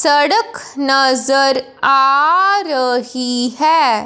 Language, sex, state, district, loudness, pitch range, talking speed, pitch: Hindi, male, Punjab, Fazilka, -14 LUFS, 260-320 Hz, 75 wpm, 275 Hz